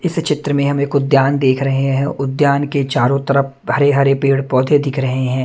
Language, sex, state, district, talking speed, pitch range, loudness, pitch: Hindi, male, Chhattisgarh, Raipur, 220 wpm, 135-145 Hz, -15 LUFS, 140 Hz